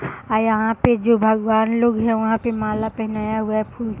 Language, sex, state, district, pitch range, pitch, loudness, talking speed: Hindi, female, Bihar, Sitamarhi, 220-230 Hz, 220 Hz, -19 LUFS, 225 wpm